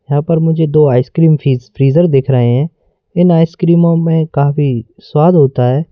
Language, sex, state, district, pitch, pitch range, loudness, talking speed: Hindi, male, Madhya Pradesh, Bhopal, 155 Hz, 135-165 Hz, -12 LUFS, 180 wpm